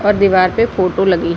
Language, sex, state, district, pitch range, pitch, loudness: Hindi, female, Uttar Pradesh, Muzaffarnagar, 185-205 Hz, 190 Hz, -14 LUFS